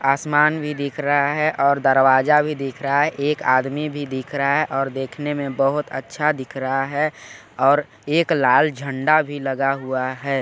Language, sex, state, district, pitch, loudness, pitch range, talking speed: Hindi, male, Chhattisgarh, Balrampur, 140 Hz, -20 LUFS, 135-150 Hz, 195 wpm